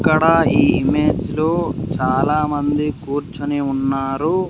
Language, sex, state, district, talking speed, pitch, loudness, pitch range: Telugu, male, Andhra Pradesh, Sri Satya Sai, 80 wpm, 150 Hz, -18 LUFS, 140-160 Hz